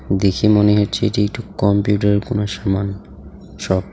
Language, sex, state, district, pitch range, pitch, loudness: Bengali, male, West Bengal, Alipurduar, 100-105 Hz, 100 Hz, -17 LUFS